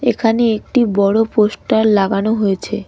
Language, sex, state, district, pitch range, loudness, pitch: Bengali, female, West Bengal, Cooch Behar, 200-225 Hz, -15 LUFS, 220 Hz